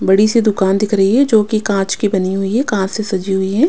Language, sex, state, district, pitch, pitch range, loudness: Hindi, female, Punjab, Kapurthala, 200 Hz, 195-220 Hz, -15 LUFS